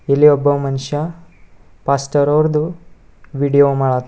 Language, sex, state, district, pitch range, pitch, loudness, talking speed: Kannada, male, Karnataka, Bidar, 140-150 Hz, 145 Hz, -16 LUFS, 105 wpm